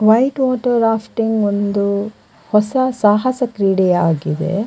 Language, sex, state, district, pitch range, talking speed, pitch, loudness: Kannada, female, Karnataka, Dakshina Kannada, 200-240 Hz, 105 wpm, 210 Hz, -16 LUFS